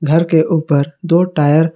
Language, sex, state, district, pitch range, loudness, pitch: Hindi, male, Jharkhand, Garhwa, 150-165 Hz, -14 LUFS, 160 Hz